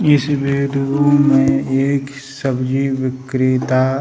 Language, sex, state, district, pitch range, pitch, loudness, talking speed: Hindi, male, Bihar, Samastipur, 135-140 Hz, 135 Hz, -16 LUFS, 105 wpm